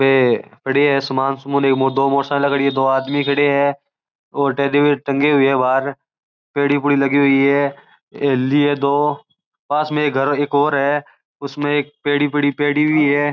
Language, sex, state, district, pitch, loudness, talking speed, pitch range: Marwari, male, Rajasthan, Churu, 140 Hz, -17 LUFS, 160 wpm, 140-145 Hz